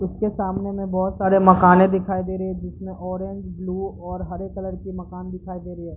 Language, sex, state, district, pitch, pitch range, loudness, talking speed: Hindi, male, Bihar, Darbhanga, 185 Hz, 185-190 Hz, -21 LUFS, 220 wpm